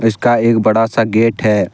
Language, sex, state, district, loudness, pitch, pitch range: Hindi, male, Jharkhand, Deoghar, -13 LUFS, 115 Hz, 110-115 Hz